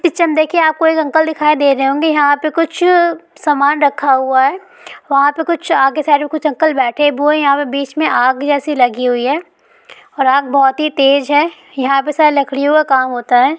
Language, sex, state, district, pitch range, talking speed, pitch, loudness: Hindi, female, Bihar, Supaul, 275-315 Hz, 230 wpm, 290 Hz, -13 LUFS